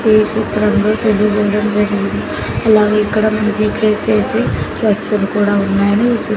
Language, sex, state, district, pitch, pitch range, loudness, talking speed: Telugu, female, Andhra Pradesh, Sri Satya Sai, 210 Hz, 210-215 Hz, -14 LUFS, 115 wpm